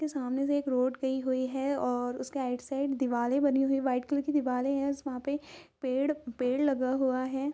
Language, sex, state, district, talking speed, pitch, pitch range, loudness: Hindi, female, Andhra Pradesh, Anantapur, 215 wpm, 265 Hz, 255-280 Hz, -30 LUFS